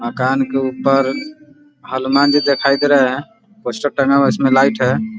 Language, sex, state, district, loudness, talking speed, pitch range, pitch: Hindi, male, Bihar, Muzaffarpur, -15 LUFS, 195 wpm, 130-145 Hz, 140 Hz